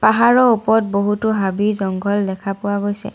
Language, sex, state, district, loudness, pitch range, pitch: Assamese, female, Assam, Sonitpur, -17 LUFS, 200-220 Hz, 205 Hz